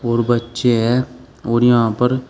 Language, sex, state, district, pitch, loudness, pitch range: Hindi, male, Uttar Pradesh, Shamli, 120 Hz, -16 LUFS, 120-125 Hz